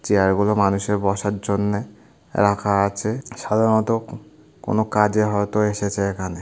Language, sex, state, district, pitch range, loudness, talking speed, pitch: Bengali, male, West Bengal, Paschim Medinipur, 100-110 Hz, -21 LUFS, 120 wpm, 105 Hz